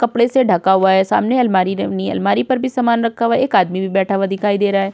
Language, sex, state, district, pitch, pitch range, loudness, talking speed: Hindi, female, Uttar Pradesh, Budaun, 195 Hz, 190-235 Hz, -16 LUFS, 305 wpm